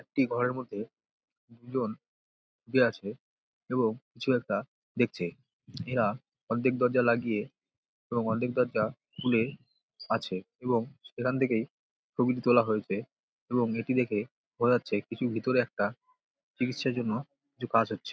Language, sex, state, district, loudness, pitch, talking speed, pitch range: Bengali, male, West Bengal, Dakshin Dinajpur, -30 LUFS, 120 Hz, 140 wpm, 115-125 Hz